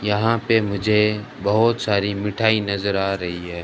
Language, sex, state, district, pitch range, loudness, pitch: Hindi, male, Rajasthan, Bikaner, 100-110 Hz, -20 LUFS, 105 Hz